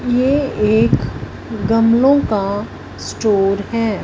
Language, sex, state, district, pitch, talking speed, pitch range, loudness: Hindi, female, Punjab, Fazilka, 225 Hz, 90 wpm, 205-245 Hz, -16 LUFS